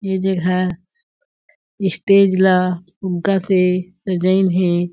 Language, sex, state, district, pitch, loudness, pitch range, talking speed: Chhattisgarhi, female, Chhattisgarh, Jashpur, 185 Hz, -17 LUFS, 180-190 Hz, 95 wpm